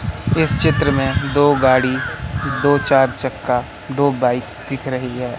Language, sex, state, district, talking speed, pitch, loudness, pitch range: Hindi, male, Madhya Pradesh, Katni, 145 wpm, 130 Hz, -17 LUFS, 125-140 Hz